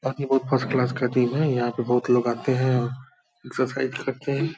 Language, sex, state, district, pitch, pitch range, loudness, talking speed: Hindi, male, Bihar, Purnia, 130 Hz, 125-135 Hz, -24 LUFS, 210 wpm